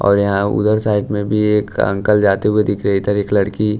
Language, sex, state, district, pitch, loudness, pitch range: Hindi, male, Chhattisgarh, Raipur, 105 Hz, -16 LUFS, 100-105 Hz